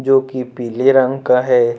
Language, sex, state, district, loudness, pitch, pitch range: Hindi, male, Jharkhand, Ranchi, -15 LUFS, 130 Hz, 125-135 Hz